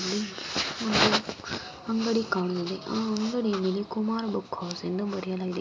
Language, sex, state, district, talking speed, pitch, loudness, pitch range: Kannada, female, Karnataka, Mysore, 115 wpm, 200 Hz, -28 LUFS, 185-220 Hz